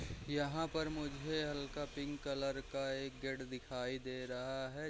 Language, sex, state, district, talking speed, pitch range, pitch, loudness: Hindi, male, Chhattisgarh, Raigarh, 160 wpm, 130-145 Hz, 135 Hz, -42 LUFS